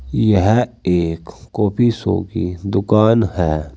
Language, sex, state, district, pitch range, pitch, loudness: Hindi, male, Uttar Pradesh, Saharanpur, 90-110 Hz, 100 Hz, -17 LUFS